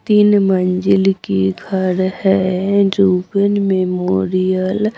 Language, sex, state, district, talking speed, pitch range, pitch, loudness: Hindi, female, Bihar, Patna, 95 wpm, 185-200 Hz, 190 Hz, -15 LUFS